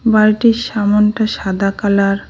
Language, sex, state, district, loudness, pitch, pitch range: Bengali, female, West Bengal, Cooch Behar, -14 LUFS, 210 Hz, 200-220 Hz